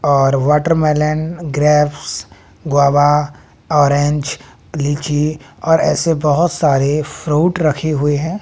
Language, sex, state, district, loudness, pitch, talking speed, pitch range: Hindi, male, Bihar, West Champaran, -15 LUFS, 150 Hz, 100 wpm, 145-155 Hz